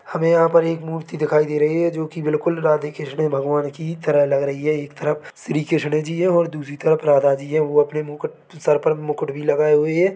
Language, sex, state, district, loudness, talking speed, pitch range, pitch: Hindi, male, Chhattisgarh, Bilaspur, -20 LUFS, 250 wpm, 150-165 Hz, 150 Hz